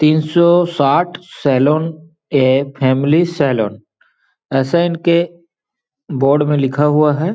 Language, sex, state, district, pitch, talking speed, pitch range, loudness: Hindi, male, Chhattisgarh, Balrampur, 150 Hz, 115 wpm, 135-170 Hz, -15 LUFS